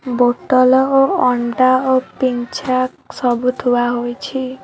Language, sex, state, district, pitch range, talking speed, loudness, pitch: Odia, female, Odisha, Khordha, 245-260 Hz, 105 wpm, -16 LUFS, 255 Hz